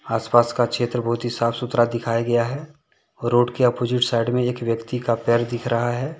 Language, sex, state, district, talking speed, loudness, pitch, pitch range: Hindi, male, Jharkhand, Deoghar, 215 wpm, -21 LUFS, 120 Hz, 115-125 Hz